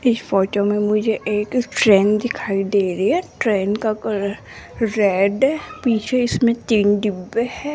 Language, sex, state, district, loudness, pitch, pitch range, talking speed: Hindi, female, Rajasthan, Jaipur, -19 LUFS, 215 Hz, 200-240 Hz, 145 wpm